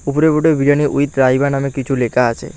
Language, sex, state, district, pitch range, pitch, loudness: Bengali, male, West Bengal, Alipurduar, 135-145 Hz, 140 Hz, -15 LUFS